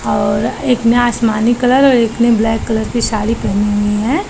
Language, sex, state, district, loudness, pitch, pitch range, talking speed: Hindi, female, Maharashtra, Chandrapur, -14 LUFS, 230 Hz, 215-240 Hz, 210 wpm